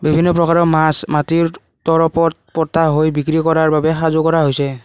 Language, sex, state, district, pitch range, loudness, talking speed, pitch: Assamese, male, Assam, Kamrup Metropolitan, 155-165 Hz, -15 LUFS, 150 wpm, 160 Hz